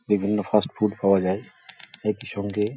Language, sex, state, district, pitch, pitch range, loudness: Bengali, male, West Bengal, Jhargram, 105 Hz, 100-105 Hz, -24 LUFS